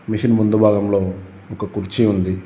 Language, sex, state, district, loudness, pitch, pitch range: Telugu, male, Telangana, Komaram Bheem, -18 LUFS, 105 Hz, 95-110 Hz